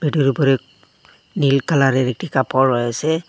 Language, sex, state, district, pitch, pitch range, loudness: Bengali, male, Assam, Hailakandi, 135 Hz, 130-150 Hz, -18 LUFS